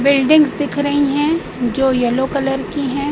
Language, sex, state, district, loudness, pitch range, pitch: Hindi, female, Madhya Pradesh, Katni, -16 LUFS, 265-290 Hz, 280 Hz